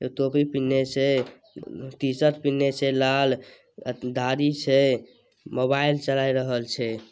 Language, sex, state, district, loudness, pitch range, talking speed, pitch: Maithili, male, Bihar, Samastipur, -24 LUFS, 130-140 Hz, 120 wpm, 135 Hz